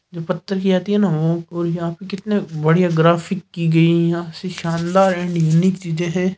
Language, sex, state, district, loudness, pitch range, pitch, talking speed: Hindi, male, Rajasthan, Nagaur, -18 LUFS, 170-190 Hz, 175 Hz, 205 wpm